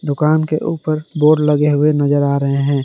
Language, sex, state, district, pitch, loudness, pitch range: Hindi, male, Jharkhand, Garhwa, 150 Hz, -15 LUFS, 145-155 Hz